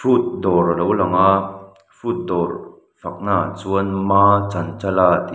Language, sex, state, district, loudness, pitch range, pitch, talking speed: Mizo, male, Mizoram, Aizawl, -18 LUFS, 90-100 Hz, 95 Hz, 155 wpm